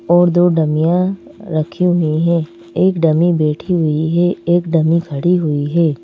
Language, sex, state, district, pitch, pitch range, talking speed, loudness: Hindi, female, Madhya Pradesh, Bhopal, 170 Hz, 155-175 Hz, 160 wpm, -15 LUFS